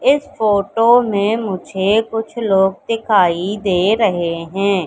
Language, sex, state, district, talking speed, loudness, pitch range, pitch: Hindi, female, Madhya Pradesh, Katni, 125 wpm, -16 LUFS, 190-225 Hz, 205 Hz